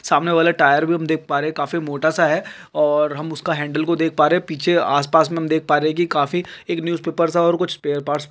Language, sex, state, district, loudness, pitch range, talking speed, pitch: Hindi, male, Chhattisgarh, Kabirdham, -19 LUFS, 150-170 Hz, 265 wpm, 160 Hz